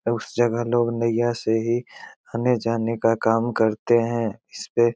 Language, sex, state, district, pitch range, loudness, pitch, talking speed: Hindi, male, Bihar, Begusarai, 115-120 Hz, -22 LUFS, 115 Hz, 155 wpm